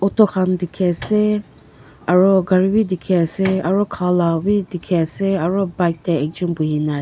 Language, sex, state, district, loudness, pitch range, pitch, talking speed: Nagamese, female, Nagaland, Kohima, -18 LUFS, 170-195 Hz, 185 Hz, 190 wpm